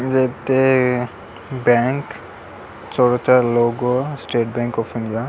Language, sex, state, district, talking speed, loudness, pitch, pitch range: Telugu, male, Andhra Pradesh, Krishna, 70 wpm, -18 LUFS, 125 Hz, 120-130 Hz